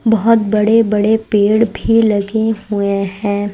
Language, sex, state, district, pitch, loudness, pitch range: Hindi, female, Uttar Pradesh, Lucknow, 215 Hz, -14 LUFS, 205-225 Hz